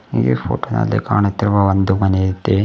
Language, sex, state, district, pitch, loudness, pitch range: Kannada, male, Karnataka, Bidar, 95 Hz, -17 LUFS, 95-100 Hz